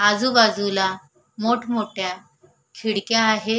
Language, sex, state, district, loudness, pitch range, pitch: Marathi, female, Maharashtra, Solapur, -21 LUFS, 190-230 Hz, 215 Hz